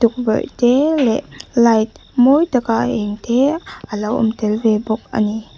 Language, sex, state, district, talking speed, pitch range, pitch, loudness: Mizo, female, Mizoram, Aizawl, 170 wpm, 220-250 Hz, 230 Hz, -17 LUFS